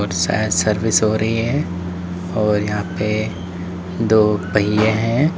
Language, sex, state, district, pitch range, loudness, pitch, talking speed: Hindi, male, Uttar Pradesh, Lalitpur, 90-110 Hz, -19 LUFS, 105 Hz, 120 wpm